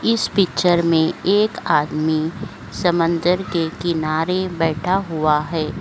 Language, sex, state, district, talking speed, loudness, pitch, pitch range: Hindi, female, Uttar Pradesh, Etah, 115 wpm, -19 LUFS, 170 Hz, 160-185 Hz